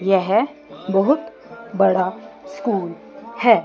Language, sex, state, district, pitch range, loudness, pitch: Hindi, female, Chandigarh, Chandigarh, 195-280 Hz, -20 LUFS, 225 Hz